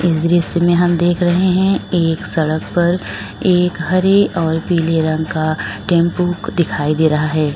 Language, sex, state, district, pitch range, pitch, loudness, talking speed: Hindi, female, Uttar Pradesh, Lalitpur, 160-180 Hz, 170 Hz, -15 LUFS, 165 wpm